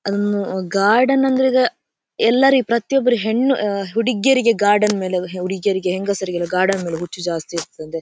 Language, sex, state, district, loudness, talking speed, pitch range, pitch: Kannada, female, Karnataka, Dakshina Kannada, -18 LUFS, 135 wpm, 185-245 Hz, 200 Hz